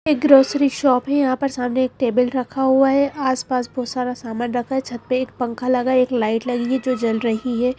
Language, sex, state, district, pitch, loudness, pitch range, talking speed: Hindi, female, Madhya Pradesh, Bhopal, 255 Hz, -19 LUFS, 245-265 Hz, 245 wpm